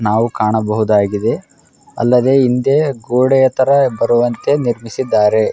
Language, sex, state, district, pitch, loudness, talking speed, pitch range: Kannada, male, Karnataka, Raichur, 120 Hz, -14 LUFS, 100 wpm, 110-130 Hz